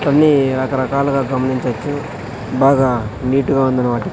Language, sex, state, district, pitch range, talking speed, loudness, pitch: Telugu, male, Andhra Pradesh, Sri Satya Sai, 125-140 Hz, 100 wpm, -16 LUFS, 130 Hz